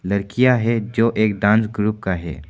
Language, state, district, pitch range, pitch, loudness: Hindi, Arunachal Pradesh, Papum Pare, 100-115 Hz, 105 Hz, -19 LUFS